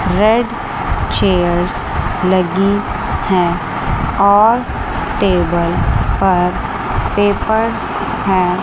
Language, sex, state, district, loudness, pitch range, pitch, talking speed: Hindi, female, Chandigarh, Chandigarh, -15 LUFS, 180-210 Hz, 190 Hz, 60 wpm